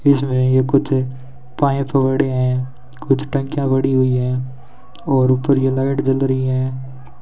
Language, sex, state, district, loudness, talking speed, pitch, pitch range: Hindi, male, Rajasthan, Bikaner, -18 LUFS, 150 wpm, 130 Hz, 130-135 Hz